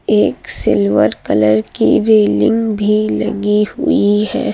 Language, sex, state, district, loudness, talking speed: Hindi, female, Uttar Pradesh, Lucknow, -13 LUFS, 120 wpm